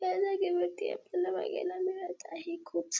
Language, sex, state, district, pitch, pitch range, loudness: Marathi, female, Maharashtra, Dhule, 370 Hz, 340-395 Hz, -34 LUFS